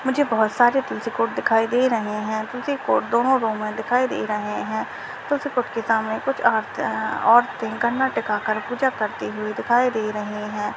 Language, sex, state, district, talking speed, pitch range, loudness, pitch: Hindi, male, Rajasthan, Churu, 155 wpm, 215-255 Hz, -22 LUFS, 230 Hz